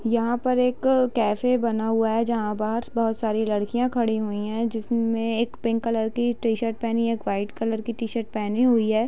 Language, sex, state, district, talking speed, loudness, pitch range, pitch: Hindi, female, Bihar, Sitamarhi, 200 wpm, -24 LUFS, 220-235 Hz, 230 Hz